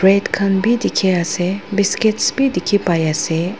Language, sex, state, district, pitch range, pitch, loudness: Nagamese, female, Nagaland, Dimapur, 175-205 Hz, 195 Hz, -17 LUFS